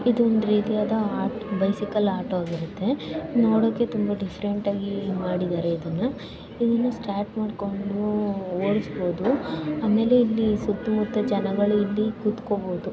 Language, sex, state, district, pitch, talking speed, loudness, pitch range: Kannada, female, Karnataka, Belgaum, 210 Hz, 110 wpm, -25 LUFS, 195-220 Hz